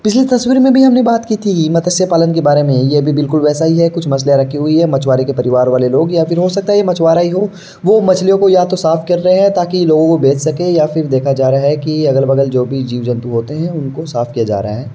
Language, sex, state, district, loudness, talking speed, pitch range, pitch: Hindi, male, Uttar Pradesh, Varanasi, -12 LUFS, 285 wpm, 135-180 Hz, 160 Hz